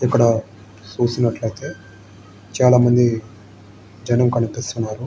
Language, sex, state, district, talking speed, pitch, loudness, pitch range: Telugu, male, Andhra Pradesh, Srikakulam, 70 wpm, 110 Hz, -18 LUFS, 105-120 Hz